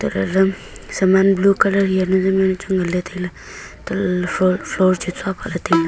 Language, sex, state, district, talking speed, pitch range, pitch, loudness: Wancho, female, Arunachal Pradesh, Longding, 155 wpm, 180-190 Hz, 190 Hz, -18 LUFS